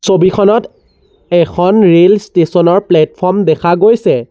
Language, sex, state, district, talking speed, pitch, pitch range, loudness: Assamese, male, Assam, Sonitpur, 110 wpm, 180 Hz, 170-200 Hz, -10 LUFS